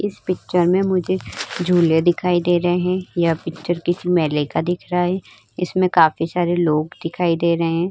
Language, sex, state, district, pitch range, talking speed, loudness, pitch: Hindi, female, Uttar Pradesh, Hamirpur, 165-180 Hz, 190 wpm, -19 LUFS, 175 Hz